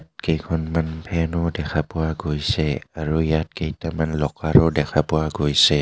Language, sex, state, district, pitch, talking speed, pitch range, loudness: Assamese, male, Assam, Kamrup Metropolitan, 80 Hz, 145 wpm, 75-80 Hz, -22 LUFS